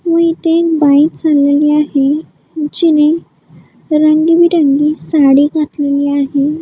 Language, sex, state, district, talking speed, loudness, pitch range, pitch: Marathi, female, Maharashtra, Gondia, 100 wpm, -11 LUFS, 285-325 Hz, 300 Hz